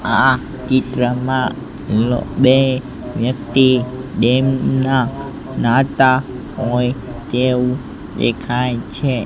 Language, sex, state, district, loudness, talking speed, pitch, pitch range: Gujarati, male, Gujarat, Gandhinagar, -17 LUFS, 70 wpm, 130 Hz, 125-130 Hz